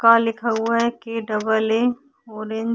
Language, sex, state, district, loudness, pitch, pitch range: Hindi, female, Uttarakhand, Tehri Garhwal, -21 LUFS, 230 Hz, 220-230 Hz